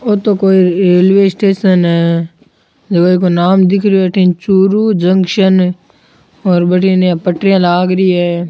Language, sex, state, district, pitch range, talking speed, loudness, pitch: Rajasthani, male, Rajasthan, Churu, 180-195 Hz, 155 wpm, -11 LUFS, 185 Hz